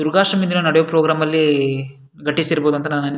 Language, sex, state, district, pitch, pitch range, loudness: Kannada, male, Karnataka, Shimoga, 155 Hz, 145-160 Hz, -17 LUFS